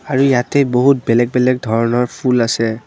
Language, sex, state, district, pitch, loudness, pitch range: Assamese, female, Assam, Kamrup Metropolitan, 125 Hz, -15 LUFS, 115-130 Hz